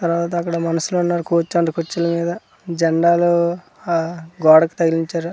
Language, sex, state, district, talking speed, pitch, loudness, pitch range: Telugu, male, Andhra Pradesh, Manyam, 135 wpm, 170 Hz, -18 LUFS, 165-170 Hz